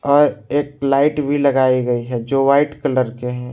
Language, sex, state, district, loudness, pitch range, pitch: Hindi, male, Jharkhand, Ranchi, -17 LUFS, 125-145 Hz, 140 Hz